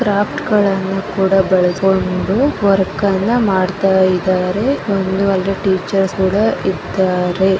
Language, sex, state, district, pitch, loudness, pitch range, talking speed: Kannada, male, Karnataka, Bijapur, 195 Hz, -15 LUFS, 190-200 Hz, 95 wpm